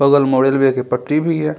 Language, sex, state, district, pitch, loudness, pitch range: Maithili, male, Bihar, Saharsa, 140 Hz, -15 LUFS, 130-150 Hz